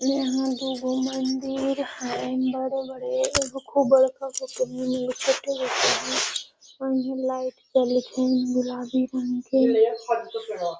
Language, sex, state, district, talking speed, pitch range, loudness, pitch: Magahi, female, Bihar, Gaya, 110 wpm, 250-270 Hz, -25 LUFS, 260 Hz